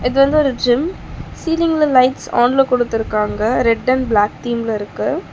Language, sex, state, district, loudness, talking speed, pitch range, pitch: Tamil, female, Tamil Nadu, Chennai, -16 LUFS, 160 wpm, 225-270 Hz, 245 Hz